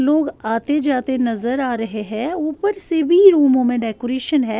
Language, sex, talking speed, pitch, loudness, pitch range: Urdu, female, 195 wpm, 260 Hz, -18 LUFS, 235-310 Hz